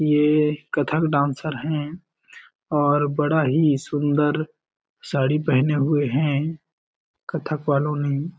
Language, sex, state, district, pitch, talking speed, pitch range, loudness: Hindi, male, Chhattisgarh, Balrampur, 150 Hz, 105 wpm, 145-155 Hz, -22 LUFS